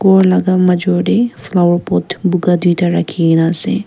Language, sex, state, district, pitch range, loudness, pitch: Nagamese, female, Nagaland, Kohima, 175-185 Hz, -13 LUFS, 180 Hz